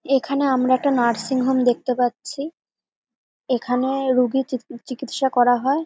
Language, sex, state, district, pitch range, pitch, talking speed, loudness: Bengali, female, West Bengal, Dakshin Dinajpur, 245-270 Hz, 255 Hz, 125 wpm, -21 LUFS